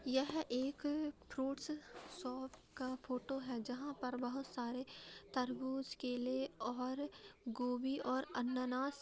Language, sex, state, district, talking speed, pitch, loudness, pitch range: Hindi, female, Uttar Pradesh, Hamirpur, 120 wpm, 260 Hz, -43 LUFS, 250-275 Hz